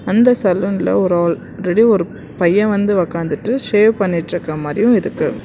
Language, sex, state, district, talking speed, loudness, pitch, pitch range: Tamil, female, Karnataka, Bangalore, 130 wpm, -15 LUFS, 195 Hz, 170-215 Hz